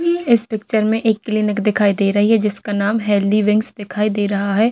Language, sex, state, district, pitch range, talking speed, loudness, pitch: Hindi, female, Chhattisgarh, Bilaspur, 205-220 Hz, 230 wpm, -17 LUFS, 210 Hz